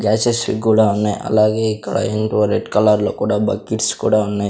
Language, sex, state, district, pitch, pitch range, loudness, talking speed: Telugu, female, Andhra Pradesh, Sri Satya Sai, 105 Hz, 105-110 Hz, -17 LUFS, 175 wpm